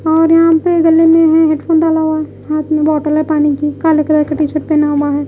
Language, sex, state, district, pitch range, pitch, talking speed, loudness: Hindi, female, Odisha, Malkangiri, 300-325 Hz, 310 Hz, 275 wpm, -12 LUFS